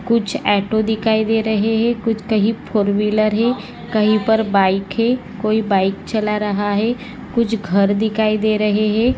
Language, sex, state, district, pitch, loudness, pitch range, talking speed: Hindi, female, Maharashtra, Nagpur, 215 Hz, -18 LUFS, 210-225 Hz, 170 wpm